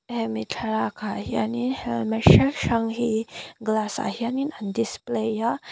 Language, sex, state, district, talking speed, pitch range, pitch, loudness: Mizo, female, Mizoram, Aizawl, 155 wpm, 175-235 Hz, 225 Hz, -24 LUFS